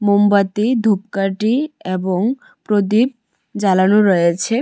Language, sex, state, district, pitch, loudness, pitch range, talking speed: Bengali, female, Tripura, West Tripura, 205 Hz, -16 LUFS, 190-225 Hz, 80 wpm